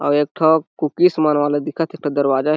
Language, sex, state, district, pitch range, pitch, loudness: Chhattisgarhi, male, Chhattisgarh, Jashpur, 145-160 Hz, 150 Hz, -18 LUFS